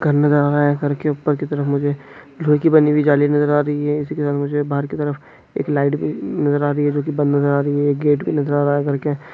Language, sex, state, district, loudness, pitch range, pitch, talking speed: Hindi, male, Chhattisgarh, Kabirdham, -18 LUFS, 145-150 Hz, 145 Hz, 275 wpm